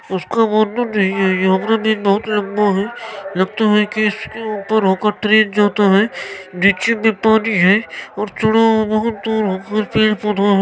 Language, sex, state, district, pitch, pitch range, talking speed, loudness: Maithili, male, Bihar, Supaul, 210 Hz, 200-220 Hz, 160 wpm, -16 LUFS